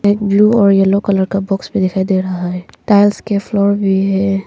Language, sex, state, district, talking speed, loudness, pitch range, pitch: Hindi, female, Arunachal Pradesh, Papum Pare, 230 wpm, -14 LUFS, 190-205 Hz, 195 Hz